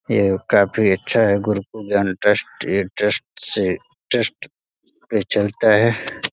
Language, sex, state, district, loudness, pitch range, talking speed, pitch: Hindi, male, Uttar Pradesh, Deoria, -19 LUFS, 100-110 Hz, 125 wpm, 105 Hz